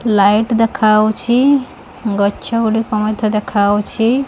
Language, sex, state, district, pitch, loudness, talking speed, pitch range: Odia, female, Odisha, Khordha, 220 Hz, -14 LUFS, 70 wpm, 210-230 Hz